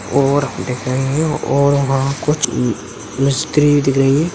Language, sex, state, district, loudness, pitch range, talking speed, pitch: Hindi, male, Uttar Pradesh, Hamirpur, -16 LUFS, 130-145 Hz, 150 wpm, 140 Hz